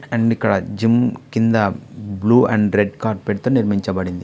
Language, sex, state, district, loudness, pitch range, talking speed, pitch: Telugu, male, Andhra Pradesh, Visakhapatnam, -18 LUFS, 100-115 Hz, 140 wpm, 110 Hz